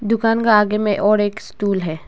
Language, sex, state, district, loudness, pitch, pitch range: Hindi, female, Arunachal Pradesh, Lower Dibang Valley, -17 LUFS, 210 Hz, 205-220 Hz